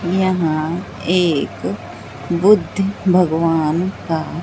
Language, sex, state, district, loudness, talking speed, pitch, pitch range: Hindi, female, Bihar, Katihar, -18 LUFS, 70 wpm, 165 Hz, 155-180 Hz